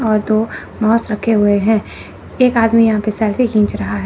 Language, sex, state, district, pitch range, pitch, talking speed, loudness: Hindi, female, Chandigarh, Chandigarh, 210-225 Hz, 220 Hz, 205 wpm, -15 LUFS